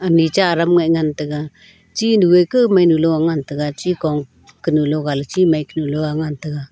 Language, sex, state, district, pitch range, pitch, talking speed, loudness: Wancho, female, Arunachal Pradesh, Longding, 150-175 Hz, 160 Hz, 190 wpm, -17 LUFS